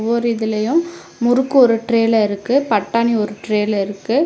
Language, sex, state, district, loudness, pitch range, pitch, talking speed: Tamil, female, Tamil Nadu, Namakkal, -17 LUFS, 210-250 Hz, 230 Hz, 140 wpm